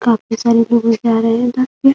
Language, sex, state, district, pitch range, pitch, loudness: Hindi, female, Bihar, Muzaffarpur, 230-240 Hz, 235 Hz, -14 LUFS